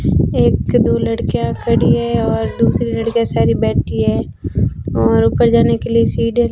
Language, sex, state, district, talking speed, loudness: Hindi, female, Rajasthan, Bikaner, 165 wpm, -15 LUFS